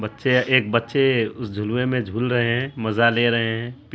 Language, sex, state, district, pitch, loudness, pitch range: Hindi, female, Bihar, Araria, 120 Hz, -21 LUFS, 115-125 Hz